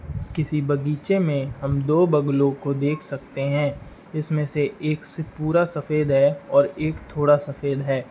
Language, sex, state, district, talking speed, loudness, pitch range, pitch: Hindi, male, Uttar Pradesh, Ghazipur, 165 wpm, -23 LUFS, 140-155 Hz, 145 Hz